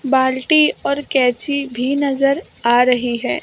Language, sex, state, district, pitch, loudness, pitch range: Hindi, male, Maharashtra, Mumbai Suburban, 265 Hz, -17 LUFS, 250-280 Hz